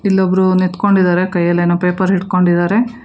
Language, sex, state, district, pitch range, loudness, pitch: Kannada, female, Karnataka, Bangalore, 175-190 Hz, -14 LUFS, 185 Hz